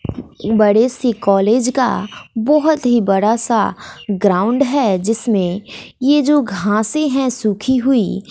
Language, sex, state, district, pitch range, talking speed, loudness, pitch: Hindi, female, Bihar, West Champaran, 205-260 Hz, 125 wpm, -15 LUFS, 230 Hz